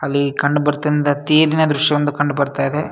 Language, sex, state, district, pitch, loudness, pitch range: Kannada, male, Karnataka, Shimoga, 145 Hz, -17 LUFS, 145-150 Hz